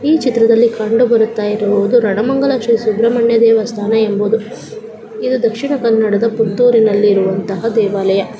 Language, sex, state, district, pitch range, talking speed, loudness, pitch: Kannada, female, Karnataka, Dakshina Kannada, 210-235 Hz, 100 wpm, -13 LUFS, 225 Hz